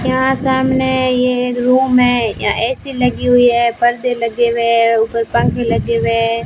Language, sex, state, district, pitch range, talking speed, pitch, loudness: Hindi, female, Rajasthan, Bikaner, 235-255 Hz, 185 wpm, 245 Hz, -14 LUFS